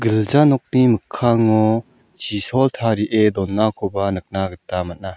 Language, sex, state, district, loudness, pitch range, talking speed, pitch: Garo, male, Meghalaya, South Garo Hills, -18 LUFS, 100-120 Hz, 105 wpm, 110 Hz